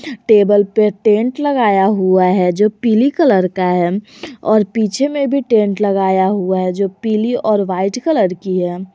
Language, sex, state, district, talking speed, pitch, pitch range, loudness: Hindi, female, Jharkhand, Garhwa, 175 wpm, 205 Hz, 190-225 Hz, -14 LUFS